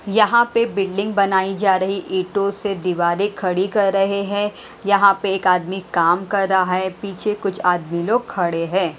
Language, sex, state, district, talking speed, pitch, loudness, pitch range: Hindi, female, Haryana, Jhajjar, 180 wpm, 195 Hz, -19 LUFS, 185-200 Hz